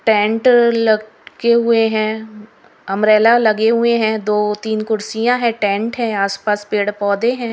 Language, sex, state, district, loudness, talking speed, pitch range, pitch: Hindi, female, Haryana, Rohtak, -16 LUFS, 150 wpm, 210-230 Hz, 220 Hz